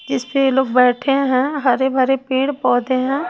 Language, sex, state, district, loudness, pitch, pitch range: Hindi, female, Chhattisgarh, Raipur, -17 LUFS, 265 Hz, 255-275 Hz